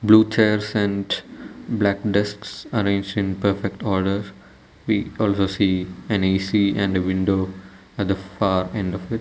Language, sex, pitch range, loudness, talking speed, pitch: English, male, 95-105 Hz, -22 LUFS, 150 wpm, 100 Hz